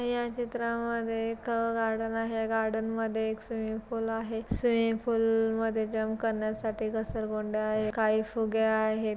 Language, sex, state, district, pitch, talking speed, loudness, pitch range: Marathi, female, Maharashtra, Pune, 225 Hz, 150 wpm, -30 LUFS, 220-230 Hz